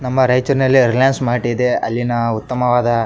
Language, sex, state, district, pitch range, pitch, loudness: Kannada, male, Karnataka, Raichur, 120-130 Hz, 125 Hz, -16 LUFS